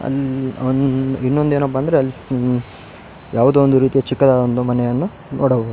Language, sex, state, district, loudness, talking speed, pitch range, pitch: Kannada, male, Karnataka, Raichur, -17 LUFS, 115 wpm, 125-135 Hz, 130 Hz